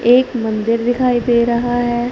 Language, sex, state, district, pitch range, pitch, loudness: Hindi, female, Punjab, Fazilka, 235-245 Hz, 240 Hz, -16 LUFS